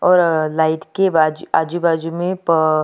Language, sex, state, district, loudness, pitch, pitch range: Hindi, female, Chhattisgarh, Sukma, -17 LUFS, 165 Hz, 160-175 Hz